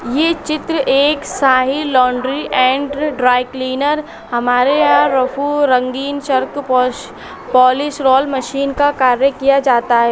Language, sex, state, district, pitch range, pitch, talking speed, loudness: Hindi, female, Chhattisgarh, Bilaspur, 255-285 Hz, 270 Hz, 120 wpm, -14 LUFS